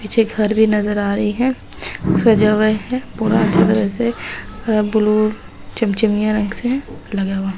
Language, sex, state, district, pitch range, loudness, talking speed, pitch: Hindi, female, Bihar, Lakhisarai, 210-220 Hz, -17 LUFS, 165 wpm, 215 Hz